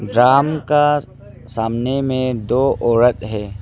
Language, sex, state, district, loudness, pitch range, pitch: Hindi, male, Arunachal Pradesh, Lower Dibang Valley, -17 LUFS, 115-135 Hz, 125 Hz